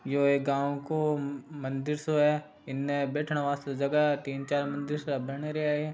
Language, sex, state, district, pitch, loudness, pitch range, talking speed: Marwari, male, Rajasthan, Churu, 145 Hz, -30 LUFS, 140-150 Hz, 180 wpm